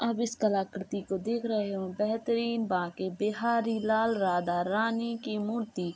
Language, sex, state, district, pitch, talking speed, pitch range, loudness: Hindi, female, Uttar Pradesh, Jalaun, 215 Hz, 160 wpm, 190-230 Hz, -30 LUFS